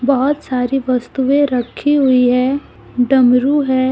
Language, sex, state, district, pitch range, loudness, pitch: Hindi, female, Jharkhand, Deoghar, 250-280 Hz, -15 LUFS, 260 Hz